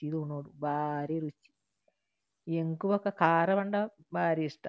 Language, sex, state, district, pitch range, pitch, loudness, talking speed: Tulu, female, Karnataka, Dakshina Kannada, 150-180 Hz, 160 Hz, -31 LUFS, 130 wpm